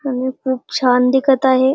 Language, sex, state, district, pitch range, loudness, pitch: Marathi, female, Maharashtra, Dhule, 255-265 Hz, -16 LUFS, 260 Hz